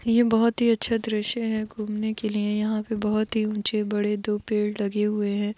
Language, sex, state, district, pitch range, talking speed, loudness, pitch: Hindi, female, Goa, North and South Goa, 210-220 Hz, 215 wpm, -23 LUFS, 215 Hz